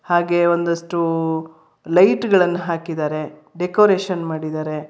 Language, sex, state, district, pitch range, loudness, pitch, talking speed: Kannada, female, Karnataka, Bangalore, 160-175 Hz, -19 LUFS, 170 Hz, 85 wpm